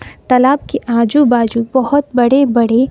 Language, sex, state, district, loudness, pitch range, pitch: Hindi, female, Bihar, West Champaran, -13 LUFS, 235-270 Hz, 250 Hz